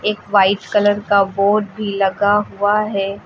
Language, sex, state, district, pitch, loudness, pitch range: Hindi, female, Uttar Pradesh, Lucknow, 205 Hz, -16 LUFS, 200-210 Hz